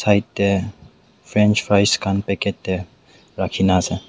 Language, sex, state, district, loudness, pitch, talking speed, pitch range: Nagamese, male, Nagaland, Dimapur, -19 LUFS, 100 Hz, 130 wpm, 95-105 Hz